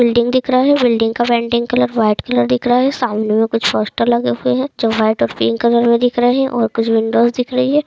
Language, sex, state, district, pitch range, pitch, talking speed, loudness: Hindi, female, Chhattisgarh, Raigarh, 220-245 Hz, 235 Hz, 260 wpm, -15 LUFS